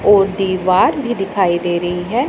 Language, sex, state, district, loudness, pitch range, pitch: Hindi, female, Punjab, Pathankot, -16 LUFS, 180-205 Hz, 195 Hz